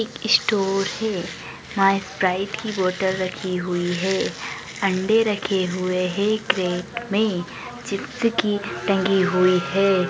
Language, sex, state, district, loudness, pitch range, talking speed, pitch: Hindi, female, Bihar, Jahanabad, -22 LUFS, 185-210 Hz, 130 wpm, 195 Hz